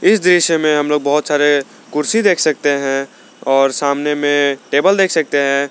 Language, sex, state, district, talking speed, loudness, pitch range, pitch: Hindi, male, Jharkhand, Garhwa, 190 wpm, -14 LUFS, 140-155 Hz, 145 Hz